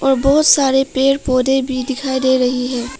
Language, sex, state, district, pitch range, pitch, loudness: Hindi, female, Arunachal Pradesh, Papum Pare, 255-270 Hz, 265 Hz, -15 LUFS